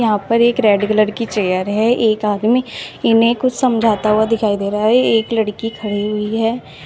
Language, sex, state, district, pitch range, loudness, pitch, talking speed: Hindi, female, Uttar Pradesh, Shamli, 210-230 Hz, -16 LUFS, 220 Hz, 200 wpm